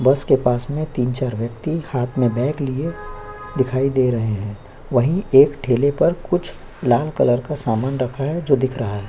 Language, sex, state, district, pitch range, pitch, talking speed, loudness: Hindi, male, Chhattisgarh, Korba, 120-145 Hz, 130 Hz, 190 wpm, -20 LUFS